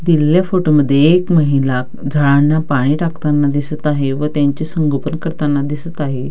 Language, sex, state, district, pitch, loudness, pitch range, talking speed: Marathi, female, Maharashtra, Dhule, 150 Hz, -15 LUFS, 140-160 Hz, 150 wpm